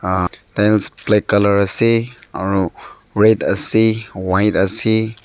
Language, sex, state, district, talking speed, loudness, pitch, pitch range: Nagamese, male, Nagaland, Dimapur, 115 wpm, -16 LUFS, 105 Hz, 95-110 Hz